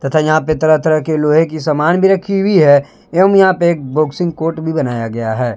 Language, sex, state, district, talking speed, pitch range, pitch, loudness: Hindi, male, Jharkhand, Palamu, 245 wpm, 145-170 Hz, 155 Hz, -13 LUFS